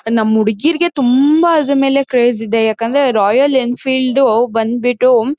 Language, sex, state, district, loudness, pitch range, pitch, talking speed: Kannada, female, Karnataka, Mysore, -13 LUFS, 225-275 Hz, 250 Hz, 135 wpm